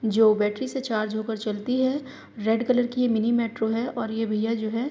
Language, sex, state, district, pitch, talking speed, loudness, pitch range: Hindi, female, Bihar, Madhepura, 225 Hz, 230 wpm, -25 LUFS, 220-245 Hz